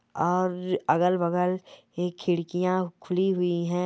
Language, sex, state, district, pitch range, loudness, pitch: Hindi, female, Bihar, Jamui, 175-185 Hz, -26 LUFS, 180 Hz